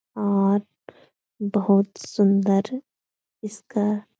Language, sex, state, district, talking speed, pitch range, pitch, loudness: Hindi, female, Bihar, Supaul, 70 wpm, 200-210 Hz, 205 Hz, -23 LUFS